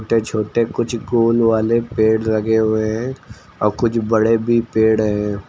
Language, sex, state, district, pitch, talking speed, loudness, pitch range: Hindi, male, Uttar Pradesh, Lucknow, 110 Hz, 165 wpm, -17 LUFS, 110-115 Hz